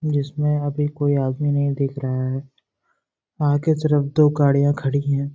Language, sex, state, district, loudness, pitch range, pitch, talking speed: Hindi, male, Chhattisgarh, Sarguja, -21 LUFS, 140-145 Hz, 145 Hz, 170 wpm